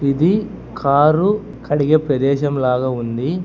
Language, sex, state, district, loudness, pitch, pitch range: Telugu, male, Telangana, Hyderabad, -17 LUFS, 145 Hz, 135-165 Hz